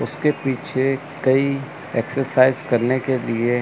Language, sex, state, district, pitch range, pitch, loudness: Hindi, male, Chandigarh, Chandigarh, 125-135 Hz, 130 Hz, -20 LUFS